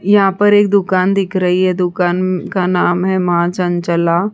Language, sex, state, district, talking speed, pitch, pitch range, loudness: Hindi, female, Uttar Pradesh, Hamirpur, 180 wpm, 185 Hz, 175-195 Hz, -14 LUFS